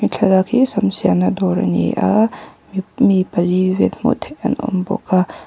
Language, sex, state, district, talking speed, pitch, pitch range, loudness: Mizo, female, Mizoram, Aizawl, 185 wpm, 190 Hz, 185-210 Hz, -17 LUFS